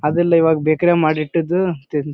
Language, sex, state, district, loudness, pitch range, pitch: Kannada, male, Karnataka, Bijapur, -17 LUFS, 155-170 Hz, 160 Hz